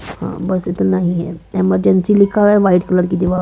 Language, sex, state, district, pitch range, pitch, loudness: Hindi, female, Chhattisgarh, Korba, 175-190 Hz, 180 Hz, -15 LUFS